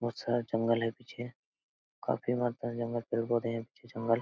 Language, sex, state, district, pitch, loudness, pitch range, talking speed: Hindi, male, Jharkhand, Sahebganj, 120 Hz, -34 LUFS, 115-120 Hz, 185 wpm